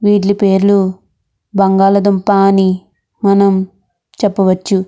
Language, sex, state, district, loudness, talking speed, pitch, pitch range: Telugu, female, Andhra Pradesh, Krishna, -12 LUFS, 75 wpm, 195 Hz, 190-200 Hz